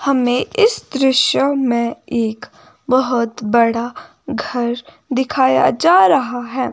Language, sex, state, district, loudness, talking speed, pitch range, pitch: Hindi, female, Himachal Pradesh, Shimla, -16 LUFS, 105 wpm, 240-275 Hz, 255 Hz